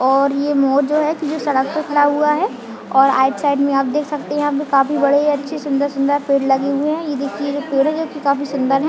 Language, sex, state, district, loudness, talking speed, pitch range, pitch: Hindi, female, Chhattisgarh, Bilaspur, -17 LUFS, 265 wpm, 275-295 Hz, 285 Hz